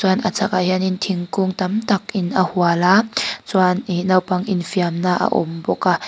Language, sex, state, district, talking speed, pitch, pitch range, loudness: Mizo, female, Mizoram, Aizawl, 185 wpm, 185 Hz, 180-195 Hz, -19 LUFS